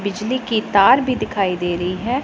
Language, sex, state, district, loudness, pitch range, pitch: Hindi, female, Punjab, Pathankot, -18 LUFS, 190-250 Hz, 205 Hz